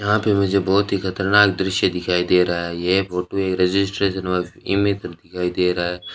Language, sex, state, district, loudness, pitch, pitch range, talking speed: Hindi, male, Rajasthan, Bikaner, -20 LUFS, 95 Hz, 90-100 Hz, 225 wpm